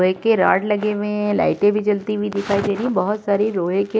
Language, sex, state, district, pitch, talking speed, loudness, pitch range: Hindi, female, Uttar Pradesh, Budaun, 205 Hz, 285 wpm, -19 LUFS, 200-210 Hz